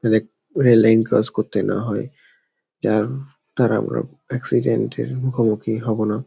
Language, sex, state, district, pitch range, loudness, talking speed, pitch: Bengali, male, West Bengal, Dakshin Dinajpur, 110-125 Hz, -20 LUFS, 135 wpm, 110 Hz